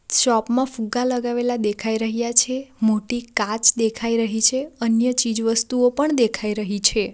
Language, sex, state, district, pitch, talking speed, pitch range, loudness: Gujarati, female, Gujarat, Valsad, 230 Hz, 160 wpm, 220-245 Hz, -20 LUFS